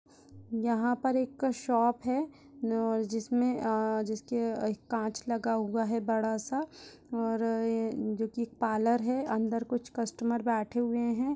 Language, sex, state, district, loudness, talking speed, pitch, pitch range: Hindi, female, Bihar, Purnia, -31 LUFS, 145 wpm, 230 Hz, 225-245 Hz